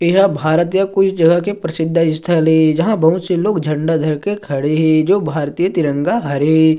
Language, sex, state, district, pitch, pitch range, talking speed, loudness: Chhattisgarhi, male, Chhattisgarh, Sarguja, 165 Hz, 155-185 Hz, 205 wpm, -15 LUFS